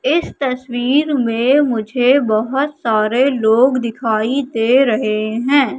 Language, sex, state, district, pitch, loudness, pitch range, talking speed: Hindi, female, Madhya Pradesh, Katni, 250 Hz, -15 LUFS, 225-270 Hz, 115 wpm